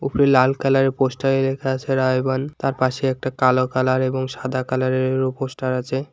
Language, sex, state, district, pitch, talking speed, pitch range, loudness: Bengali, male, West Bengal, Alipurduar, 130 Hz, 165 wpm, 130-135 Hz, -20 LUFS